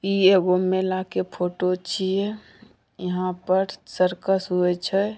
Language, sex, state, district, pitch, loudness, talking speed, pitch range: Angika, female, Bihar, Begusarai, 185 Hz, -23 LUFS, 150 wpm, 180-190 Hz